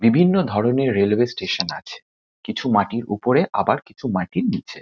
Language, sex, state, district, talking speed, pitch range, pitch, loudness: Bengali, male, West Bengal, Kolkata, 150 wpm, 105-135 Hz, 120 Hz, -20 LUFS